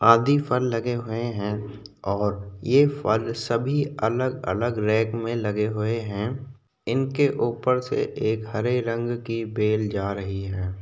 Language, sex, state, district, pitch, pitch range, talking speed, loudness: Hindi, male, Maharashtra, Chandrapur, 115 Hz, 105-125 Hz, 150 wpm, -25 LUFS